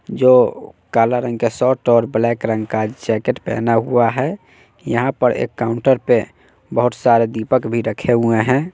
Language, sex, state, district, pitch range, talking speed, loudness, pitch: Hindi, male, Bihar, West Champaran, 115-125 Hz, 170 wpm, -17 LUFS, 115 Hz